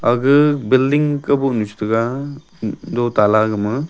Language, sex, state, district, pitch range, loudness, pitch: Wancho, male, Arunachal Pradesh, Longding, 110-140 Hz, -17 LUFS, 130 Hz